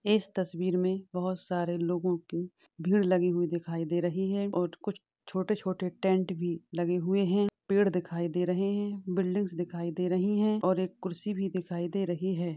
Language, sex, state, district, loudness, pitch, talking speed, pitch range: Hindi, female, Maharashtra, Chandrapur, -31 LUFS, 185 Hz, 190 wpm, 175-195 Hz